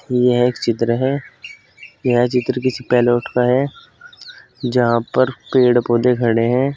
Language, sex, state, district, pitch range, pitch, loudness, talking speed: Hindi, male, Uttar Pradesh, Saharanpur, 120-130 Hz, 125 Hz, -17 LUFS, 135 wpm